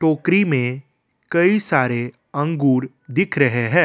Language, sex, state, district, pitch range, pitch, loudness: Hindi, male, Assam, Kamrup Metropolitan, 125-170 Hz, 140 Hz, -19 LUFS